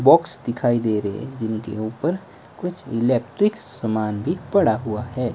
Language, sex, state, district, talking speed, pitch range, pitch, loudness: Hindi, male, Himachal Pradesh, Shimla, 155 wpm, 110-140 Hz, 120 Hz, -23 LUFS